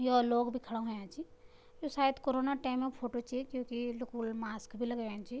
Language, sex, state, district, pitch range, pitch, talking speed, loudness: Garhwali, female, Uttarakhand, Tehri Garhwal, 230-260 Hz, 245 Hz, 210 wpm, -36 LUFS